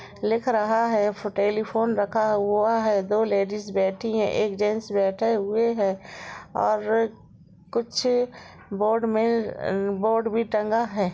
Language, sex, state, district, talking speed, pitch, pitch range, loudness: Hindi, female, Uttar Pradesh, Jalaun, 135 wpm, 215 Hz, 205-225 Hz, -24 LUFS